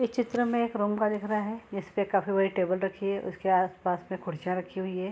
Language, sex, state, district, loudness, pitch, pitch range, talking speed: Hindi, female, Bihar, Saharsa, -29 LUFS, 195 Hz, 185-215 Hz, 270 wpm